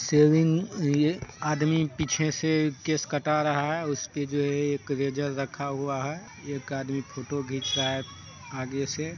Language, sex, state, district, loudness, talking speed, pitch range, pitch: Hindi, male, Bihar, Saharsa, -27 LUFS, 170 wpm, 135-155 Hz, 145 Hz